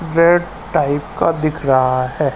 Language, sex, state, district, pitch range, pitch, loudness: Hindi, male, Uttar Pradesh, Ghazipur, 135-165 Hz, 150 Hz, -16 LUFS